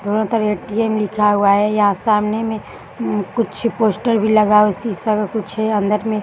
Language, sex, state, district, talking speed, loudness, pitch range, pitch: Hindi, female, Bihar, Samastipur, 210 wpm, -17 LUFS, 210-220 Hz, 215 Hz